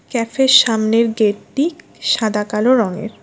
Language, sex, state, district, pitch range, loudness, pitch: Bengali, female, West Bengal, Alipurduar, 215-255 Hz, -16 LUFS, 225 Hz